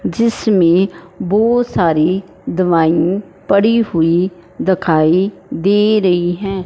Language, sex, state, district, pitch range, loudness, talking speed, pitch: Hindi, male, Punjab, Fazilka, 175-200 Hz, -14 LUFS, 90 wpm, 185 Hz